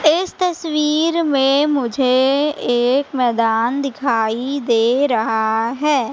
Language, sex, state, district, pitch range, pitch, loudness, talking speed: Hindi, female, Madhya Pradesh, Katni, 235-295 Hz, 270 Hz, -17 LUFS, 100 wpm